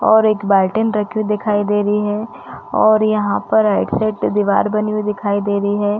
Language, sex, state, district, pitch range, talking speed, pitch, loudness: Hindi, female, Chhattisgarh, Raigarh, 205-215 Hz, 200 wpm, 210 Hz, -16 LUFS